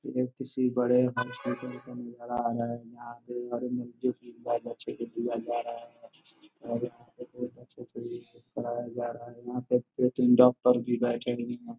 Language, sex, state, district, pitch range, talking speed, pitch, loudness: Hindi, male, Bihar, Gopalganj, 120-125 Hz, 75 wpm, 120 Hz, -30 LUFS